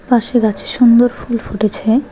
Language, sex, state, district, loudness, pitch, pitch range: Bengali, female, West Bengal, Alipurduar, -14 LUFS, 235 Hz, 220-245 Hz